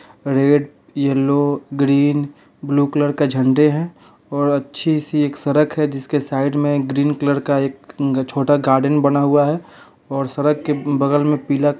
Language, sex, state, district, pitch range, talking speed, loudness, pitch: Hindi, male, Bihar, Sitamarhi, 140-145 Hz, 170 wpm, -18 LUFS, 145 Hz